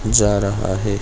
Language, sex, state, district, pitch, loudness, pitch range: Hindi, male, Chhattisgarh, Bilaspur, 105 Hz, -18 LUFS, 100-105 Hz